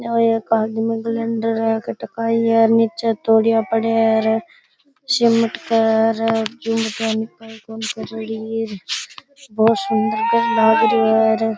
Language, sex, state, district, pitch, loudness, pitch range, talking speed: Rajasthani, male, Rajasthan, Churu, 225 Hz, -18 LUFS, 220-230 Hz, 45 wpm